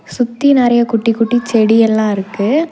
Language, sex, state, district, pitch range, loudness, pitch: Tamil, female, Tamil Nadu, Nilgiris, 220-245 Hz, -13 LUFS, 230 Hz